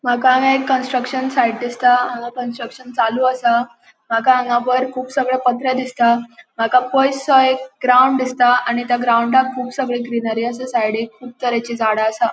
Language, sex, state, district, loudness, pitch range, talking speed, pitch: Konkani, female, Goa, North and South Goa, -17 LUFS, 235-255 Hz, 160 wpm, 250 Hz